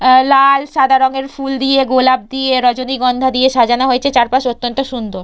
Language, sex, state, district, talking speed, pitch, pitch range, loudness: Bengali, female, West Bengal, Purulia, 150 wpm, 260 Hz, 250-270 Hz, -13 LUFS